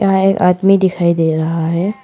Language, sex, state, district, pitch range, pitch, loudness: Hindi, female, Arunachal Pradesh, Papum Pare, 165-195 Hz, 180 Hz, -14 LUFS